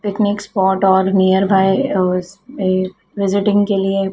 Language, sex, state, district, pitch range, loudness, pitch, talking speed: Hindi, female, Madhya Pradesh, Dhar, 190-205 Hz, -16 LUFS, 195 Hz, 130 wpm